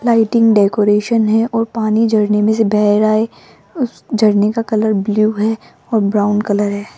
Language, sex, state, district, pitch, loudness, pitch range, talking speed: Hindi, female, Rajasthan, Jaipur, 215 Hz, -14 LUFS, 210-225 Hz, 170 wpm